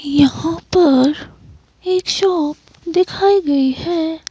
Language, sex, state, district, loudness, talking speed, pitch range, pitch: Hindi, female, Himachal Pradesh, Shimla, -16 LUFS, 95 wpm, 290-365 Hz, 325 Hz